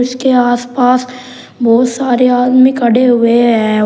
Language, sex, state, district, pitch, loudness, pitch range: Hindi, male, Uttar Pradesh, Shamli, 245 Hz, -10 LUFS, 240-250 Hz